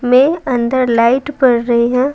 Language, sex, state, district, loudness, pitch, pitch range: Hindi, female, Bihar, Patna, -13 LUFS, 250 Hz, 240-265 Hz